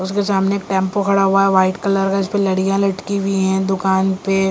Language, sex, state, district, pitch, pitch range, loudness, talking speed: Hindi, female, Delhi, New Delhi, 195 Hz, 190-195 Hz, -17 LUFS, 225 wpm